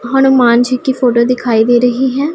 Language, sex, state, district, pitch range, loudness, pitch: Hindi, female, Punjab, Pathankot, 240-265 Hz, -11 LUFS, 250 Hz